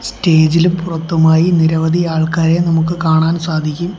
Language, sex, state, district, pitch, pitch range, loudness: Malayalam, male, Kerala, Kollam, 165 Hz, 160-170 Hz, -13 LUFS